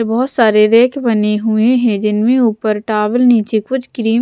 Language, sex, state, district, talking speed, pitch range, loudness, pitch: Hindi, female, Punjab, Pathankot, 185 wpm, 215-245 Hz, -13 LUFS, 225 Hz